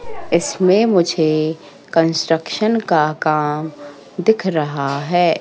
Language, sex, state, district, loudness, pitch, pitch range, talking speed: Hindi, female, Madhya Pradesh, Katni, -17 LUFS, 165 Hz, 155-190 Hz, 90 wpm